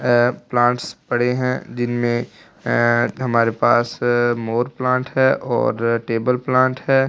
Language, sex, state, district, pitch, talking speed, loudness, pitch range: Hindi, male, Delhi, New Delhi, 120 Hz, 145 wpm, -19 LUFS, 120-125 Hz